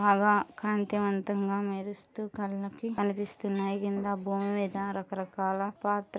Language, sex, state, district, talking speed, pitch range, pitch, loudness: Telugu, female, Andhra Pradesh, Krishna, 95 wpm, 195-205 Hz, 200 Hz, -31 LUFS